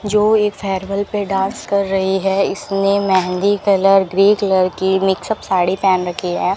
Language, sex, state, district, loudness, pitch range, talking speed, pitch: Hindi, female, Rajasthan, Bikaner, -16 LUFS, 190-200 Hz, 175 wpm, 195 Hz